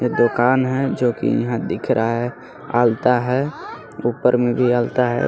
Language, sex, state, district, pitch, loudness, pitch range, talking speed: Hindi, male, Jharkhand, Garhwa, 120 Hz, -19 LUFS, 120-125 Hz, 195 wpm